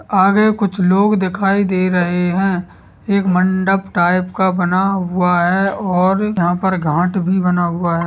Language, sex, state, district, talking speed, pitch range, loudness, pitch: Hindi, male, Chhattisgarh, Sukma, 165 wpm, 180-195 Hz, -15 LUFS, 185 Hz